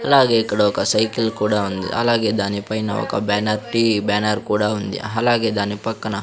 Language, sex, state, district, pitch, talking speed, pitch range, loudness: Telugu, male, Andhra Pradesh, Sri Satya Sai, 105 Hz, 175 wpm, 105-115 Hz, -19 LUFS